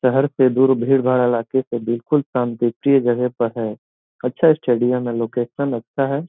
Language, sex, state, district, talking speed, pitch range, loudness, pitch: Hindi, male, Bihar, Gopalganj, 170 wpm, 120-135 Hz, -19 LUFS, 125 Hz